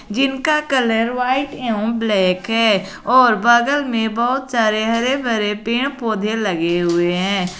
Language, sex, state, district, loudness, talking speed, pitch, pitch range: Hindi, female, Jharkhand, Garhwa, -17 LUFS, 140 wpm, 225 Hz, 210-255 Hz